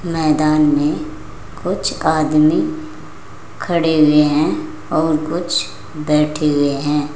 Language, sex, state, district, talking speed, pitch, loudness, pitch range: Hindi, female, Uttar Pradesh, Saharanpur, 100 wpm, 155 Hz, -16 LUFS, 150-160 Hz